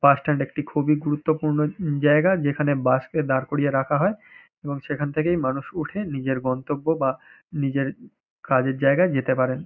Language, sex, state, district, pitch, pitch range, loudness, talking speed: Bengali, male, West Bengal, Paschim Medinipur, 145 Hz, 135-155 Hz, -23 LUFS, 155 wpm